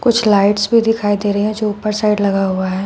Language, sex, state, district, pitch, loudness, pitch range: Hindi, female, Uttar Pradesh, Shamli, 205 Hz, -15 LUFS, 200-215 Hz